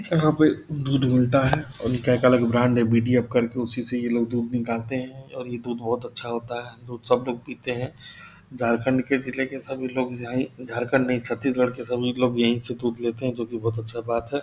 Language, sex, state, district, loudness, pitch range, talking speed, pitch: Hindi, male, Bihar, Purnia, -24 LUFS, 120-130 Hz, 230 wpm, 125 Hz